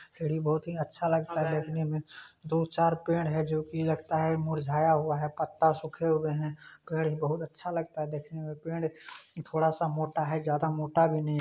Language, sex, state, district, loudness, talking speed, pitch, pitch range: Hindi, male, Bihar, Kishanganj, -30 LUFS, 205 wpm, 160 Hz, 155-160 Hz